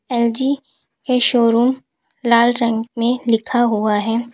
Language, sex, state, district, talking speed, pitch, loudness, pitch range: Hindi, female, Uttar Pradesh, Lalitpur, 125 wpm, 240 Hz, -16 LUFS, 230-250 Hz